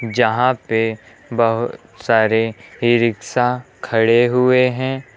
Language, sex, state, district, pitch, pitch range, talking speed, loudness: Hindi, male, Uttar Pradesh, Lucknow, 120 Hz, 115-125 Hz, 105 wpm, -17 LUFS